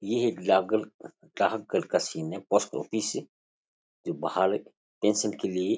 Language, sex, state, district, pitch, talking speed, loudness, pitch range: Rajasthani, male, Rajasthan, Churu, 105 Hz, 145 wpm, -28 LUFS, 95-110 Hz